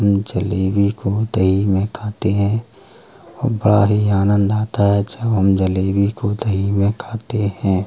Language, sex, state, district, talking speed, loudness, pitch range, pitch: Hindi, male, Uttar Pradesh, Jalaun, 145 wpm, -18 LUFS, 100-110 Hz, 100 Hz